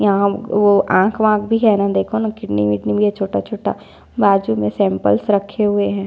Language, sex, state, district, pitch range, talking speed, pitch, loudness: Hindi, female, Chhattisgarh, Jashpur, 185-210 Hz, 210 wpm, 200 Hz, -17 LUFS